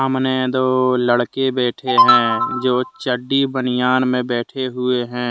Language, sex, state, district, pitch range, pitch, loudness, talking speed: Hindi, male, Jharkhand, Deoghar, 125-135 Hz, 130 Hz, -17 LUFS, 125 wpm